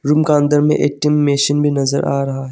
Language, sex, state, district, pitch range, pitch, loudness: Hindi, male, Arunachal Pradesh, Longding, 140-150 Hz, 145 Hz, -15 LUFS